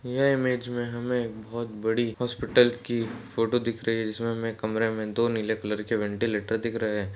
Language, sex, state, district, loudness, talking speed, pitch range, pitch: Hindi, male, Maharashtra, Solapur, -27 LUFS, 200 wpm, 110-120 Hz, 115 Hz